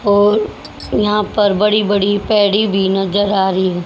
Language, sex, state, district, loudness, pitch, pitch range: Hindi, female, Haryana, Jhajjar, -14 LUFS, 205 Hz, 195-210 Hz